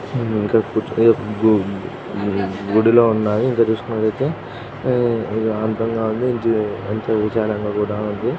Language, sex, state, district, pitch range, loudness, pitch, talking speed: Telugu, male, Telangana, Karimnagar, 105-115 Hz, -19 LUFS, 110 Hz, 115 wpm